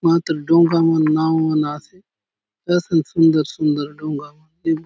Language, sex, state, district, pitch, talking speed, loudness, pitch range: Halbi, male, Chhattisgarh, Bastar, 160 Hz, 150 wpm, -18 LUFS, 150-165 Hz